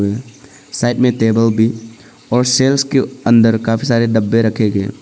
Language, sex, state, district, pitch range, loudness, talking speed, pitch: Hindi, male, Arunachal Pradesh, Papum Pare, 110-125 Hz, -14 LUFS, 155 wpm, 115 Hz